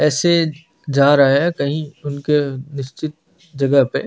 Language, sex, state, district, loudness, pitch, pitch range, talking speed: Hindi, male, Chandigarh, Chandigarh, -17 LUFS, 145 Hz, 140-155 Hz, 150 wpm